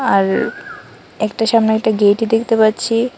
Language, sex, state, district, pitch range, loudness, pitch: Bengali, female, Tripura, West Tripura, 215-230 Hz, -15 LUFS, 225 Hz